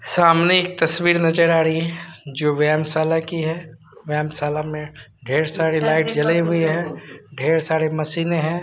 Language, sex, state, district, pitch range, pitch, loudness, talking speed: Hindi, male, Bihar, Katihar, 155-165 Hz, 160 Hz, -19 LUFS, 175 wpm